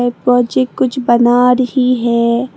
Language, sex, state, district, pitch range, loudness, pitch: Hindi, female, Tripura, Dhalai, 240-255 Hz, -13 LUFS, 245 Hz